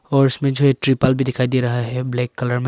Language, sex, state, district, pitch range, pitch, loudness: Hindi, male, Arunachal Pradesh, Papum Pare, 125-135 Hz, 130 Hz, -18 LUFS